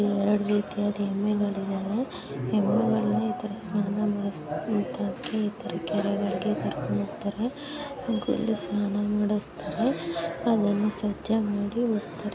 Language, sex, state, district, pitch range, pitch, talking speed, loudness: Kannada, female, Karnataka, Dakshina Kannada, 200-220 Hz, 205 Hz, 115 wpm, -28 LUFS